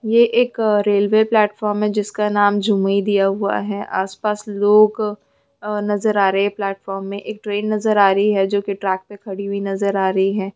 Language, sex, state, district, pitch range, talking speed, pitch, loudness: Hindi, female, Bihar, Jamui, 195-210 Hz, 100 wpm, 205 Hz, -18 LUFS